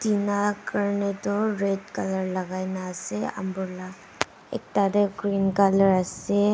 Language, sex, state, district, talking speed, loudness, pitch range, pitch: Nagamese, female, Nagaland, Dimapur, 130 wpm, -26 LUFS, 185-205 Hz, 195 Hz